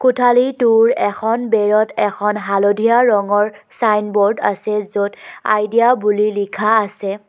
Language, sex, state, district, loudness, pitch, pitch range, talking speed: Assamese, female, Assam, Kamrup Metropolitan, -16 LUFS, 210 Hz, 205-230 Hz, 105 wpm